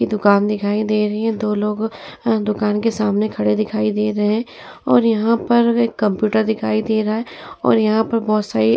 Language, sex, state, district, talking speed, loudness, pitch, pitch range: Hindi, female, Uttar Pradesh, Muzaffarnagar, 205 wpm, -18 LUFS, 215 Hz, 210-220 Hz